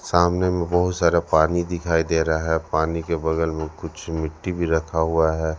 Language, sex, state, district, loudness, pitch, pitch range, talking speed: Hindi, male, Punjab, Kapurthala, -22 LUFS, 80 Hz, 80-85 Hz, 205 wpm